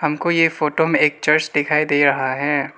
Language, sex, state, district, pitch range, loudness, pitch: Hindi, male, Arunachal Pradesh, Lower Dibang Valley, 145-155 Hz, -17 LUFS, 150 Hz